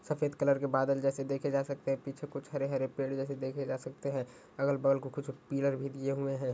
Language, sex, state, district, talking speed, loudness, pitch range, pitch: Hindi, male, Uttar Pradesh, Ghazipur, 255 wpm, -34 LUFS, 135-140 Hz, 135 Hz